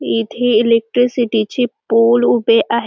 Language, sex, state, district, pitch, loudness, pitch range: Marathi, female, Maharashtra, Dhule, 230 Hz, -14 LUFS, 220-240 Hz